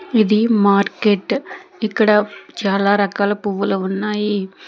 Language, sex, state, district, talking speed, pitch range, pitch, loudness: Telugu, female, Telangana, Hyderabad, 90 wpm, 200-220 Hz, 210 Hz, -17 LUFS